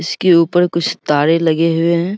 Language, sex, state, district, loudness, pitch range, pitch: Hindi, male, Bihar, Araria, -14 LUFS, 165-175 Hz, 170 Hz